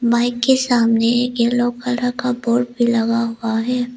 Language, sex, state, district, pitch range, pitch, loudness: Hindi, female, Arunachal Pradesh, Lower Dibang Valley, 235-245 Hz, 240 Hz, -18 LUFS